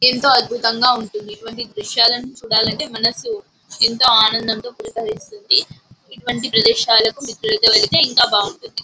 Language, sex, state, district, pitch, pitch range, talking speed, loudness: Telugu, female, Andhra Pradesh, Anantapur, 235 Hz, 225-260 Hz, 115 wpm, -15 LUFS